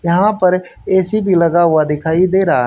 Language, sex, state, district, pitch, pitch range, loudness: Hindi, male, Haryana, Charkhi Dadri, 180 Hz, 165-190 Hz, -14 LUFS